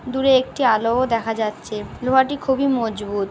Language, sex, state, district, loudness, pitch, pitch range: Bengali, female, West Bengal, North 24 Parganas, -20 LUFS, 235 Hz, 215-265 Hz